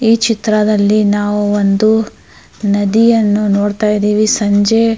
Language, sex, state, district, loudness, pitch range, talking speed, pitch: Kannada, female, Karnataka, Mysore, -12 LUFS, 205-220 Hz, 110 wpm, 210 Hz